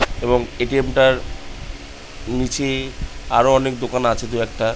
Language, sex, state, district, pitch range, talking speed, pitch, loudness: Bengali, male, West Bengal, Jhargram, 105-130 Hz, 125 wpm, 120 Hz, -19 LUFS